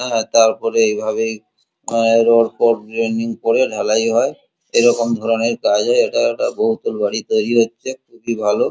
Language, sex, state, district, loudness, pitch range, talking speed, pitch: Bengali, male, West Bengal, Kolkata, -17 LUFS, 115-120 Hz, 145 wpm, 115 Hz